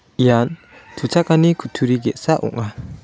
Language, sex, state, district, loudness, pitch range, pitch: Garo, male, Meghalaya, West Garo Hills, -18 LUFS, 125-160 Hz, 130 Hz